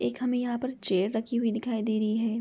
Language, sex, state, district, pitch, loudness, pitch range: Hindi, female, Bihar, Begusarai, 225 Hz, -29 LUFS, 220-240 Hz